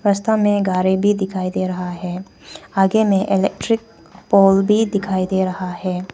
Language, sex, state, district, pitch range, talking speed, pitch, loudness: Hindi, female, Arunachal Pradesh, Papum Pare, 185-200 Hz, 165 wpm, 195 Hz, -18 LUFS